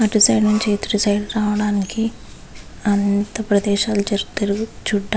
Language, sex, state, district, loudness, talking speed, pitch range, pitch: Telugu, female, Andhra Pradesh, Visakhapatnam, -19 LUFS, 130 wpm, 205-215 Hz, 210 Hz